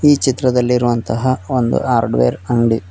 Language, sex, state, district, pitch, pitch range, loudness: Kannada, male, Karnataka, Koppal, 125 Hz, 115-130 Hz, -16 LUFS